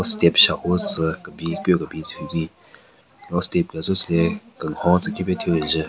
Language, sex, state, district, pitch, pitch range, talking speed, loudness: Rengma, male, Nagaland, Kohima, 85 Hz, 80-90 Hz, 205 wpm, -20 LUFS